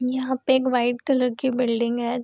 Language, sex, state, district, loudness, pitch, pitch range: Hindi, female, Bihar, Vaishali, -23 LUFS, 250 Hz, 240-260 Hz